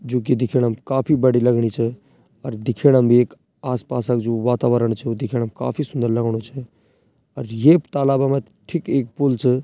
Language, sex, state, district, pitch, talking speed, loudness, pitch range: Garhwali, male, Uttarakhand, Tehri Garhwal, 125 Hz, 185 wpm, -19 LUFS, 115-135 Hz